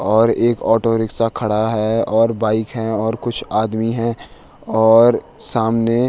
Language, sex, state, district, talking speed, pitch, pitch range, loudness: Hindi, male, Uttarakhand, Tehri Garhwal, 160 wpm, 115 Hz, 110-115 Hz, -17 LUFS